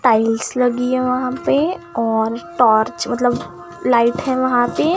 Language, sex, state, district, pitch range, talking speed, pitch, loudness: Hindi, female, Maharashtra, Gondia, 225-255 Hz, 145 wpm, 245 Hz, -17 LUFS